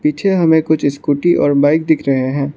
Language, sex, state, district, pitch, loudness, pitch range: Hindi, male, Arunachal Pradesh, Lower Dibang Valley, 155 Hz, -14 LUFS, 140-165 Hz